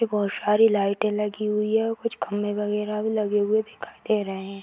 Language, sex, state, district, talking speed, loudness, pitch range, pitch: Hindi, female, Uttar Pradesh, Hamirpur, 220 wpm, -24 LUFS, 205-215 Hz, 210 Hz